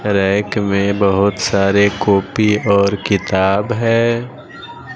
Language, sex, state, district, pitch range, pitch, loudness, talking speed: Hindi, male, Bihar, West Champaran, 100-105 Hz, 100 Hz, -15 LUFS, 95 wpm